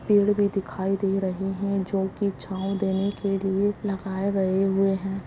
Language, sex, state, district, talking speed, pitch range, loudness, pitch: Hindi, female, Bihar, Lakhisarai, 180 wpm, 195-200 Hz, -25 LUFS, 195 Hz